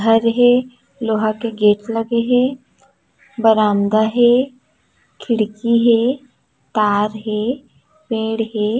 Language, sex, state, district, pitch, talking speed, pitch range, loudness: Chhattisgarhi, female, Chhattisgarh, Raigarh, 230 Hz, 110 wpm, 215-245 Hz, -17 LUFS